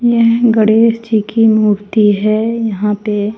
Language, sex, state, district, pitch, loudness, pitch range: Hindi, female, Haryana, Charkhi Dadri, 220 Hz, -12 LUFS, 210-230 Hz